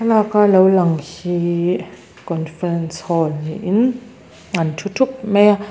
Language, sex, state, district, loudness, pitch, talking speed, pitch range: Mizo, female, Mizoram, Aizawl, -17 LUFS, 185 Hz, 135 wpm, 165-210 Hz